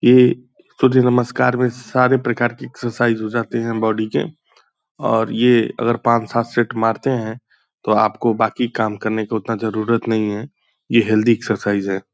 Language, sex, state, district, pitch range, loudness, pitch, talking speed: Hindi, male, Bihar, Purnia, 110-120 Hz, -18 LUFS, 115 Hz, 175 wpm